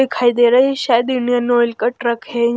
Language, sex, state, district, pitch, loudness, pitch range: Hindi, female, Chhattisgarh, Raipur, 240 Hz, -15 LUFS, 235-255 Hz